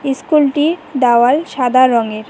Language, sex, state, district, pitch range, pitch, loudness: Bengali, female, West Bengal, Cooch Behar, 245-295 Hz, 265 Hz, -13 LUFS